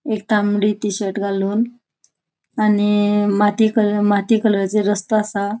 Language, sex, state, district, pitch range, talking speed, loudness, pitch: Konkani, female, Goa, North and South Goa, 200-215 Hz, 130 wpm, -18 LUFS, 205 Hz